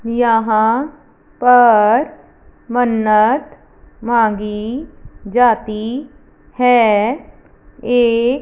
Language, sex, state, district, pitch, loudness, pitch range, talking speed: Hindi, female, Punjab, Fazilka, 235 Hz, -14 LUFS, 220-250 Hz, 50 wpm